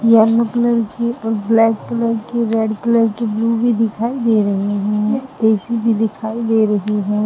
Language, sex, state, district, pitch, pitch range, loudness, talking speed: Hindi, female, Uttar Pradesh, Saharanpur, 225 Hz, 215-230 Hz, -17 LUFS, 180 wpm